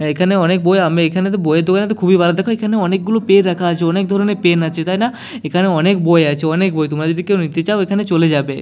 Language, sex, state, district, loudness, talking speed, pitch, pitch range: Bengali, male, West Bengal, Jalpaiguri, -15 LUFS, 265 wpm, 180 Hz, 165-195 Hz